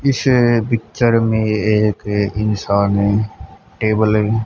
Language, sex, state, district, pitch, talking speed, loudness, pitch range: Hindi, male, Haryana, Charkhi Dadri, 110 Hz, 105 wpm, -16 LUFS, 105-115 Hz